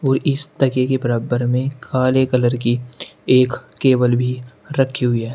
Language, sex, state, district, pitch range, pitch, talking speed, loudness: Hindi, male, Uttar Pradesh, Shamli, 120-130 Hz, 125 Hz, 155 wpm, -18 LUFS